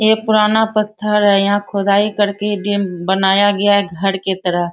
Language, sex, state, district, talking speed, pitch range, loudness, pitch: Hindi, female, Bihar, Bhagalpur, 175 wpm, 195-210 Hz, -15 LUFS, 205 Hz